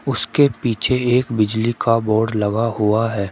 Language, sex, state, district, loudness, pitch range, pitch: Hindi, male, Uttar Pradesh, Shamli, -18 LUFS, 110-120 Hz, 115 Hz